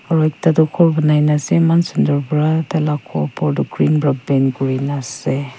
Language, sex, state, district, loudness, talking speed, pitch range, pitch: Nagamese, female, Nagaland, Kohima, -16 LUFS, 205 wpm, 135-160 Hz, 150 Hz